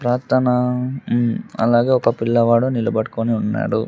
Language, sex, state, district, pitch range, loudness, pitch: Telugu, male, Andhra Pradesh, Sri Satya Sai, 115-125 Hz, -18 LUFS, 120 Hz